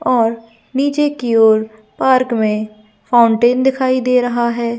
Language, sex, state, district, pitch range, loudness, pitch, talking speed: Hindi, female, Chhattisgarh, Bilaspur, 225-255 Hz, -15 LUFS, 235 Hz, 150 wpm